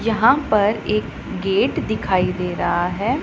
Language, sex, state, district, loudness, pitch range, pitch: Hindi, female, Punjab, Pathankot, -20 LUFS, 180-225 Hz, 210 Hz